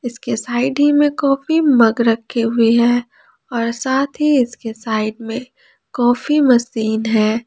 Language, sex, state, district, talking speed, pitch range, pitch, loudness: Hindi, female, Jharkhand, Palamu, 145 wpm, 230-275 Hz, 240 Hz, -16 LUFS